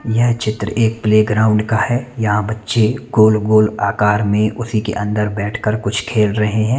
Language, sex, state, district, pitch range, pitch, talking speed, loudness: Hindi, male, Chandigarh, Chandigarh, 105-110 Hz, 110 Hz, 175 wpm, -16 LUFS